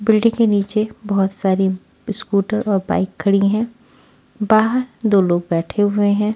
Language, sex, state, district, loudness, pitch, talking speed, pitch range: Hindi, female, Haryana, Rohtak, -18 LUFS, 205 Hz, 150 wpm, 195-220 Hz